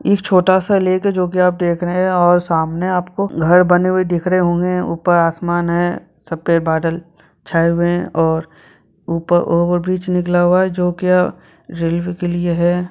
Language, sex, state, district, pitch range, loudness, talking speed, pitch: Hindi, male, Jharkhand, Sahebganj, 170-180 Hz, -16 LUFS, 195 wpm, 175 Hz